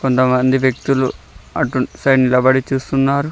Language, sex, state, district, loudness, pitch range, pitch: Telugu, male, Telangana, Mahabubabad, -16 LUFS, 130-135 Hz, 130 Hz